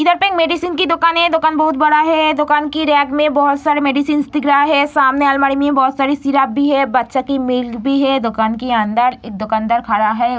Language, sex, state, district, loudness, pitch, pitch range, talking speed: Hindi, female, Bihar, Saharsa, -14 LUFS, 280 Hz, 255-300 Hz, 230 wpm